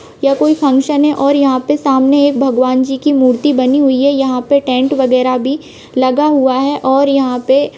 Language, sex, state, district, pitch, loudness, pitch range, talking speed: Hindi, female, Bihar, Vaishali, 270 Hz, -12 LUFS, 260-285 Hz, 200 wpm